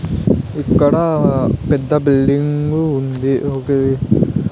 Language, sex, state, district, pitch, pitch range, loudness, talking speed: Telugu, male, Andhra Pradesh, Sri Satya Sai, 140 Hz, 135-150 Hz, -16 LUFS, 80 wpm